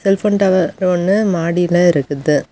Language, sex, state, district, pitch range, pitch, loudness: Tamil, female, Tamil Nadu, Kanyakumari, 170-195 Hz, 180 Hz, -15 LUFS